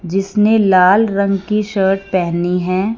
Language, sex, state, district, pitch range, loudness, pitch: Hindi, female, Punjab, Fazilka, 185-210 Hz, -14 LUFS, 195 Hz